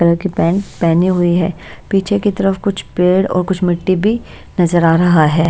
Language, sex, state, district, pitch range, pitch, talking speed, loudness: Hindi, female, Bihar, Patna, 170-195 Hz, 180 Hz, 210 wpm, -14 LUFS